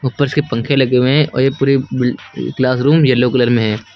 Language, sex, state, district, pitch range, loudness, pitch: Hindi, male, Uttar Pradesh, Lucknow, 125-135 Hz, -14 LUFS, 130 Hz